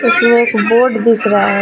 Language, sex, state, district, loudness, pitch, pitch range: Hindi, female, Jharkhand, Ranchi, -11 LUFS, 230 Hz, 220-235 Hz